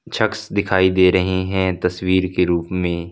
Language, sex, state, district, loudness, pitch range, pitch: Hindi, male, Punjab, Fazilka, -18 LUFS, 90-95 Hz, 95 Hz